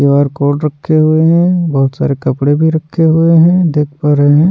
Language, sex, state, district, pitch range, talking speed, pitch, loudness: Hindi, male, Odisha, Nuapada, 145-165 Hz, 215 wpm, 155 Hz, -11 LUFS